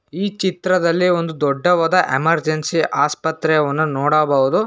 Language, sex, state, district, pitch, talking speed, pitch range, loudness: Kannada, male, Karnataka, Bangalore, 160 Hz, 90 wpm, 150-180 Hz, -17 LUFS